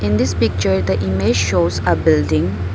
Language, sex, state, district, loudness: English, female, Arunachal Pradesh, Papum Pare, -17 LUFS